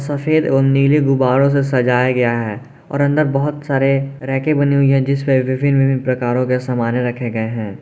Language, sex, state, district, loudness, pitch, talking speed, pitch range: Hindi, male, Jharkhand, Garhwa, -16 LUFS, 135 Hz, 190 wpm, 125-140 Hz